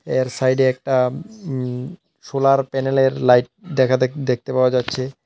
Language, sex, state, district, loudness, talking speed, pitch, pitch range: Bengali, male, Tripura, South Tripura, -19 LUFS, 135 wpm, 130 Hz, 130-135 Hz